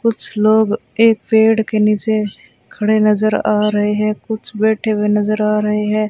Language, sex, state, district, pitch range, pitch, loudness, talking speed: Hindi, female, Rajasthan, Bikaner, 210-220 Hz, 215 Hz, -15 LUFS, 175 wpm